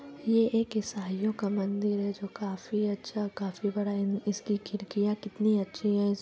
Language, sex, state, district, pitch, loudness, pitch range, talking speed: Hindi, female, Bihar, Lakhisarai, 205 Hz, -31 LUFS, 200-210 Hz, 155 wpm